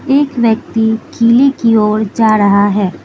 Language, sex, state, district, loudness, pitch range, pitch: Hindi, female, Manipur, Imphal West, -11 LUFS, 210-240 Hz, 225 Hz